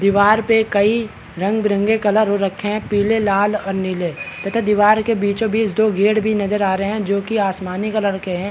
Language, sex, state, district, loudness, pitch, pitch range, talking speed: Hindi, male, Chhattisgarh, Balrampur, -18 LUFS, 205 Hz, 195-215 Hz, 220 wpm